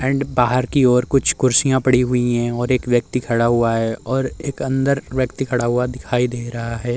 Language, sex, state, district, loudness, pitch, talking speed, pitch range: Hindi, male, Uttar Pradesh, Muzaffarnagar, -18 LUFS, 125 Hz, 205 wpm, 120-130 Hz